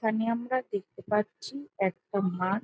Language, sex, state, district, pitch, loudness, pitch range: Bengali, female, West Bengal, Jhargram, 210 Hz, -31 LUFS, 195-230 Hz